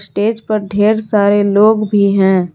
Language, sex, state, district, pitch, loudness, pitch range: Hindi, female, Jharkhand, Garhwa, 205 Hz, -13 LUFS, 200-215 Hz